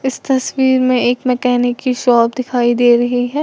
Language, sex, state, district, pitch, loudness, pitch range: Hindi, female, Uttar Pradesh, Lalitpur, 250 Hz, -14 LUFS, 245-260 Hz